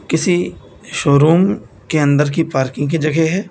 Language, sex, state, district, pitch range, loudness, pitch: Hindi, male, Uttar Pradesh, Lucknow, 140-165 Hz, -15 LUFS, 150 Hz